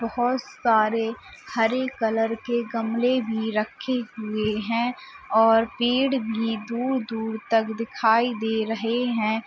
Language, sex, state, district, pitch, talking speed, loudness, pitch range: Hindi, female, Uttar Pradesh, Hamirpur, 230 Hz, 125 wpm, -24 LUFS, 220-245 Hz